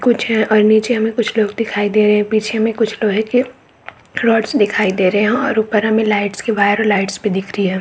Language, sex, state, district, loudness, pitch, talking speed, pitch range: Hindi, male, Chhattisgarh, Balrampur, -15 LUFS, 215 Hz, 255 wpm, 205-225 Hz